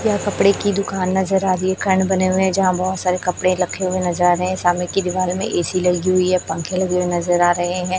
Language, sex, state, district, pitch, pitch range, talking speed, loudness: Hindi, female, Chhattisgarh, Raipur, 185 Hz, 180-190 Hz, 240 wpm, -18 LUFS